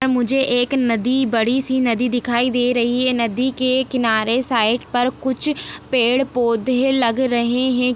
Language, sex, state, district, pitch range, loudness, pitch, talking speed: Hindi, female, Chhattisgarh, Jashpur, 240-260 Hz, -18 LUFS, 250 Hz, 150 wpm